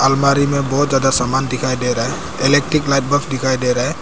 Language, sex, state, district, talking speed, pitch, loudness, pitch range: Hindi, male, Arunachal Pradesh, Papum Pare, 240 wpm, 135 Hz, -16 LUFS, 130-140 Hz